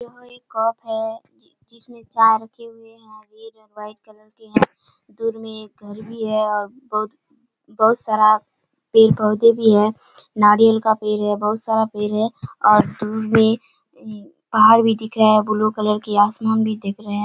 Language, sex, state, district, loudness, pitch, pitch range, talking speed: Hindi, female, Bihar, Kishanganj, -18 LUFS, 220 Hz, 215-225 Hz, 185 wpm